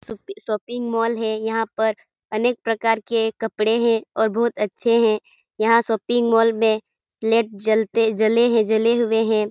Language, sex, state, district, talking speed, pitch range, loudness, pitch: Hindi, female, Bihar, Kishanganj, 170 wpm, 220-230 Hz, -20 LUFS, 225 Hz